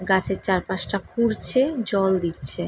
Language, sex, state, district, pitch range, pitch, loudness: Bengali, female, West Bengal, Jalpaiguri, 185-220 Hz, 190 Hz, -22 LUFS